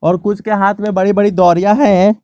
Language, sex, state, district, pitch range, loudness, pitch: Hindi, male, Jharkhand, Garhwa, 190-210 Hz, -12 LUFS, 205 Hz